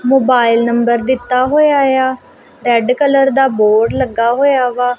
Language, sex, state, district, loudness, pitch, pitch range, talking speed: Punjabi, female, Punjab, Kapurthala, -12 LUFS, 250 Hz, 235-270 Hz, 145 wpm